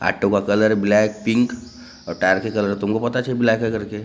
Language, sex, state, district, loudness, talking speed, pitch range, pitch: Hindi, male, Maharashtra, Gondia, -19 LUFS, 220 wpm, 105-115 Hz, 110 Hz